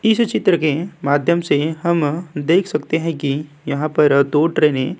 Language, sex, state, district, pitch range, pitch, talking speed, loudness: Hindi, male, Uttarakhand, Tehri Garhwal, 145-170 Hz, 155 Hz, 180 wpm, -18 LUFS